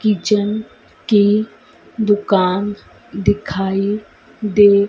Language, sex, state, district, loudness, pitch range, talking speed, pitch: Hindi, female, Madhya Pradesh, Dhar, -17 LUFS, 200-210 Hz, 60 wpm, 205 Hz